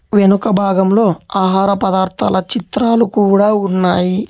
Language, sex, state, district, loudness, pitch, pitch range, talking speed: Telugu, male, Telangana, Hyderabad, -14 LUFS, 200 Hz, 190-210 Hz, 100 wpm